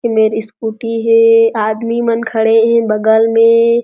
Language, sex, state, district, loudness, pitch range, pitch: Chhattisgarhi, female, Chhattisgarh, Jashpur, -12 LUFS, 220-230 Hz, 225 Hz